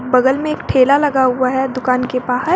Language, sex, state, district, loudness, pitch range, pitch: Hindi, female, Jharkhand, Garhwa, -15 LUFS, 255-280 Hz, 260 Hz